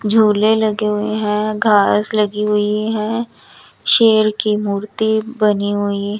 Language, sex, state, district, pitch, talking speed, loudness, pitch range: Hindi, female, Chandigarh, Chandigarh, 210 Hz, 125 wpm, -16 LUFS, 210-220 Hz